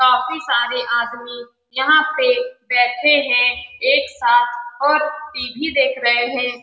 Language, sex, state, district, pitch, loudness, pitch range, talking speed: Hindi, female, Bihar, Saran, 260 Hz, -17 LUFS, 245-310 Hz, 125 wpm